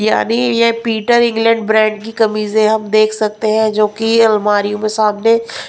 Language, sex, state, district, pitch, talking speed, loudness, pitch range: Hindi, female, Punjab, Pathankot, 220 Hz, 170 wpm, -13 LUFS, 215-230 Hz